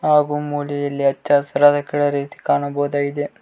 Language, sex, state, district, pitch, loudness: Kannada, male, Karnataka, Koppal, 145 Hz, -19 LUFS